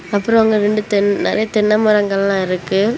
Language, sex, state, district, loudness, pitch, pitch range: Tamil, female, Tamil Nadu, Kanyakumari, -15 LUFS, 210 Hz, 200-215 Hz